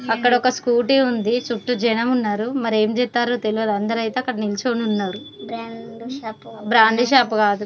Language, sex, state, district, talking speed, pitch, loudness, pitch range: Telugu, female, Telangana, Karimnagar, 140 wpm, 230 Hz, -19 LUFS, 220-245 Hz